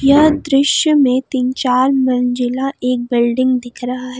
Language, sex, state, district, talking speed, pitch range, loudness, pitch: Hindi, female, Jharkhand, Palamu, 155 wpm, 250-275 Hz, -15 LUFS, 255 Hz